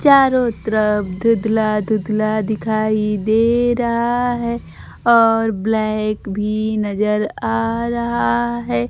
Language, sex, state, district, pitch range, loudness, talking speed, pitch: Hindi, female, Bihar, Kaimur, 205-230 Hz, -18 LUFS, 100 wpm, 215 Hz